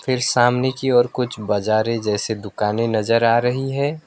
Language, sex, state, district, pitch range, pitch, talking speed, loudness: Hindi, male, West Bengal, Alipurduar, 110-130 Hz, 120 Hz, 175 wpm, -19 LUFS